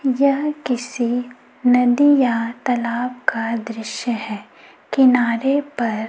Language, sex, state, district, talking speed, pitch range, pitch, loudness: Hindi, female, Chhattisgarh, Raipur, 100 wpm, 230-265 Hz, 245 Hz, -19 LUFS